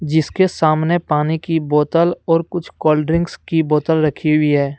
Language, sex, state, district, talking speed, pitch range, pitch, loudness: Hindi, male, Jharkhand, Deoghar, 175 wpm, 150-165 Hz, 160 Hz, -17 LUFS